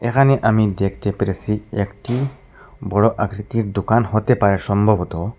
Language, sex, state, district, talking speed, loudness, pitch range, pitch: Bengali, male, Assam, Hailakandi, 120 wpm, -19 LUFS, 100-115 Hz, 105 Hz